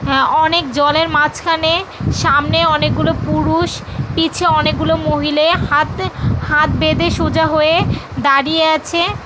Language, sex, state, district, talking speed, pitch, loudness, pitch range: Bengali, female, West Bengal, Jhargram, 110 wpm, 320 Hz, -14 LUFS, 300-330 Hz